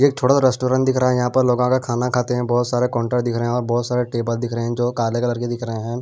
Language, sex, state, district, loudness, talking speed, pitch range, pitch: Hindi, male, Punjab, Pathankot, -20 LUFS, 330 wpm, 120-125 Hz, 120 Hz